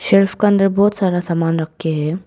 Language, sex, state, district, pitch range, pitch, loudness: Hindi, female, Arunachal Pradesh, Papum Pare, 165-195 Hz, 190 Hz, -16 LUFS